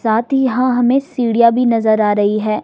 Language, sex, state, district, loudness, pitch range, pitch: Hindi, female, Himachal Pradesh, Shimla, -14 LUFS, 220-255 Hz, 235 Hz